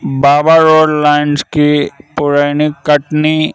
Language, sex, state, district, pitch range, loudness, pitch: Hindi, male, Madhya Pradesh, Katni, 145-155 Hz, -11 LUFS, 150 Hz